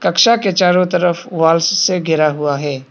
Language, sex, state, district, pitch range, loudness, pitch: Hindi, male, Arunachal Pradesh, Papum Pare, 155-185 Hz, -14 LUFS, 170 Hz